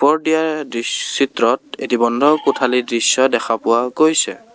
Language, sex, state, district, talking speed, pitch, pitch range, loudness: Assamese, male, Assam, Kamrup Metropolitan, 145 wpm, 130 Hz, 120-155 Hz, -16 LUFS